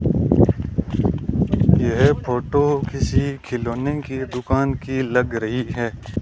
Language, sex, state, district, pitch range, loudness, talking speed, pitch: Hindi, male, Rajasthan, Bikaner, 125-140 Hz, -20 LUFS, 95 wpm, 130 Hz